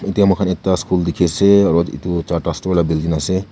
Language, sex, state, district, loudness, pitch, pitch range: Nagamese, male, Nagaland, Kohima, -16 LUFS, 90 Hz, 85-95 Hz